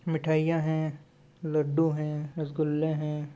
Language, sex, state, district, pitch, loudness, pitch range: Hindi, male, Goa, North and South Goa, 155 Hz, -29 LUFS, 150-160 Hz